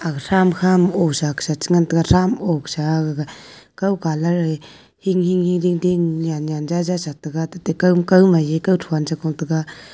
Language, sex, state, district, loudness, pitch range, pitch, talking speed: Wancho, female, Arunachal Pradesh, Longding, -19 LUFS, 155-180 Hz, 165 Hz, 135 wpm